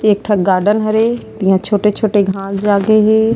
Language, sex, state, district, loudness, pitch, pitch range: Chhattisgarhi, female, Chhattisgarh, Sarguja, -14 LUFS, 210 Hz, 195-215 Hz